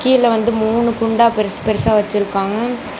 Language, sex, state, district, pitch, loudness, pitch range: Tamil, female, Tamil Nadu, Namakkal, 225 Hz, -16 LUFS, 210-235 Hz